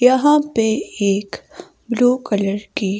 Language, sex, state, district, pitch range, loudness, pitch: Hindi, female, Himachal Pradesh, Shimla, 200-255 Hz, -18 LUFS, 220 Hz